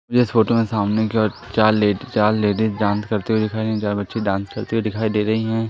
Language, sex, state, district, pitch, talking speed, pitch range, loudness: Hindi, male, Madhya Pradesh, Katni, 110 Hz, 275 wpm, 105-110 Hz, -20 LUFS